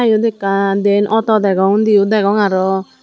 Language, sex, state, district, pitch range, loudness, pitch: Chakma, female, Tripura, Dhalai, 195-215 Hz, -14 LUFS, 205 Hz